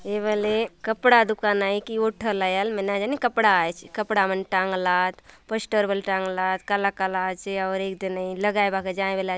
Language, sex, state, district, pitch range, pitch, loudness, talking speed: Halbi, female, Chhattisgarh, Bastar, 190-215 Hz, 200 Hz, -24 LUFS, 130 wpm